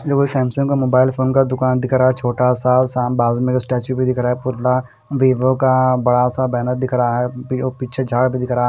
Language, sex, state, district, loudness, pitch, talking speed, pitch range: Hindi, male, Punjab, Kapurthala, -17 LUFS, 130 Hz, 220 wpm, 125-130 Hz